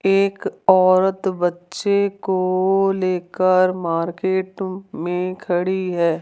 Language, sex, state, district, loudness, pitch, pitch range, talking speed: Hindi, female, Rajasthan, Jaipur, -19 LUFS, 185 Hz, 180-190 Hz, 85 wpm